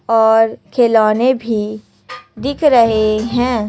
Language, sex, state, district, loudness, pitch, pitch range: Hindi, female, Chhattisgarh, Raipur, -14 LUFS, 225 Hz, 215-245 Hz